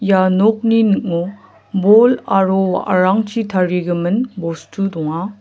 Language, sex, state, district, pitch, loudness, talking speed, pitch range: Garo, male, Meghalaya, South Garo Hills, 190 Hz, -16 LUFS, 100 wpm, 180-210 Hz